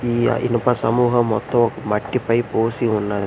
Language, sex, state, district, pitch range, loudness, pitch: Telugu, male, Telangana, Hyderabad, 110-120 Hz, -19 LUFS, 120 Hz